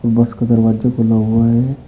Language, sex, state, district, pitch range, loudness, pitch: Hindi, male, Uttar Pradesh, Shamli, 115-120 Hz, -14 LUFS, 115 Hz